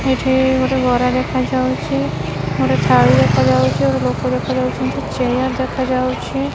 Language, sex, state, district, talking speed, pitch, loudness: Odia, female, Odisha, Khordha, 120 wpm, 135 Hz, -16 LUFS